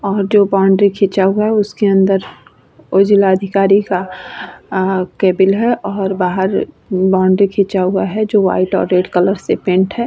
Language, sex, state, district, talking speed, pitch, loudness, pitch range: Hindi, female, Uttar Pradesh, Varanasi, 175 wpm, 195 Hz, -14 LUFS, 185-200 Hz